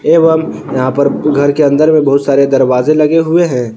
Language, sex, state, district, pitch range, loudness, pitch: Hindi, male, Jharkhand, Palamu, 135-155 Hz, -10 LUFS, 145 Hz